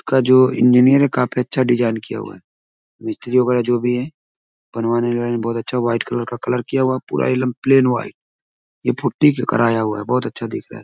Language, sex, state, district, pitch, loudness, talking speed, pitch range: Hindi, male, Uttar Pradesh, Ghazipur, 125 Hz, -18 LUFS, 220 wpm, 115-130 Hz